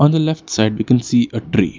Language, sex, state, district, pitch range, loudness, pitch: English, male, Karnataka, Bangalore, 110-150 Hz, -17 LUFS, 120 Hz